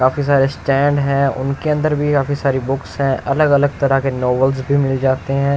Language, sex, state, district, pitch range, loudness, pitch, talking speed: Hindi, male, Chandigarh, Chandigarh, 135-140 Hz, -16 LUFS, 140 Hz, 205 wpm